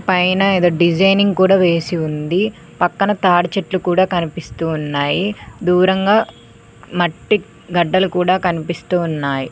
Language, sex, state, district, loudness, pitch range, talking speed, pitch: Telugu, female, Telangana, Mahabubabad, -16 LUFS, 165-190 Hz, 105 wpm, 180 Hz